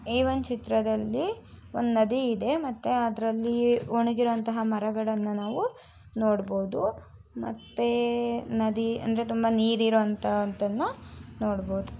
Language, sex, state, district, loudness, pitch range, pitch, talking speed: Kannada, female, Karnataka, Shimoga, -28 LUFS, 220-240 Hz, 225 Hz, 55 wpm